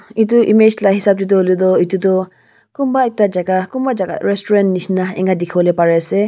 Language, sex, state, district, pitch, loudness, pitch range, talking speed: Nagamese, female, Nagaland, Kohima, 190 Hz, -14 LUFS, 185-210 Hz, 190 wpm